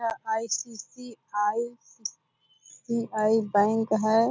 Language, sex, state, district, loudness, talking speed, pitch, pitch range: Hindi, female, Bihar, Purnia, -27 LUFS, 70 wpm, 220 Hz, 205-230 Hz